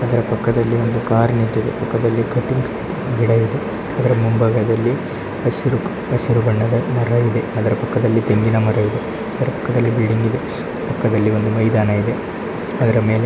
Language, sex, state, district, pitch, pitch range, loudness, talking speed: Kannada, male, Karnataka, Chamarajanagar, 115 Hz, 110-120 Hz, -18 LUFS, 125 wpm